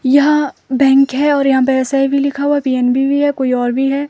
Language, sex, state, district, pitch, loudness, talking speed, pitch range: Hindi, female, Himachal Pradesh, Shimla, 275 Hz, -14 LUFS, 235 wpm, 265-285 Hz